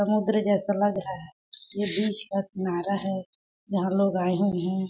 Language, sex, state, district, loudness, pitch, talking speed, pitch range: Hindi, female, Chhattisgarh, Balrampur, -27 LUFS, 195 Hz, 185 wpm, 190-205 Hz